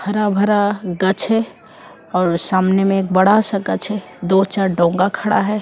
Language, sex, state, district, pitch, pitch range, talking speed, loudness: Hindi, female, Chhattisgarh, Kabirdham, 195 Hz, 185-205 Hz, 180 wpm, -17 LUFS